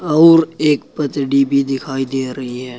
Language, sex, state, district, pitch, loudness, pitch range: Hindi, male, Uttar Pradesh, Saharanpur, 140 Hz, -16 LUFS, 135-150 Hz